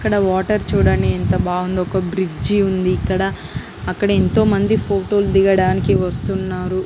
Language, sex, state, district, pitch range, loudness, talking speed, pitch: Telugu, female, Andhra Pradesh, Guntur, 185-200 Hz, -17 LUFS, 130 wpm, 190 Hz